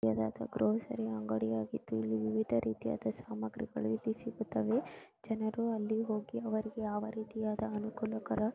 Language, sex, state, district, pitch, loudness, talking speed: Kannada, female, Karnataka, Gulbarga, 210 Hz, -36 LUFS, 120 wpm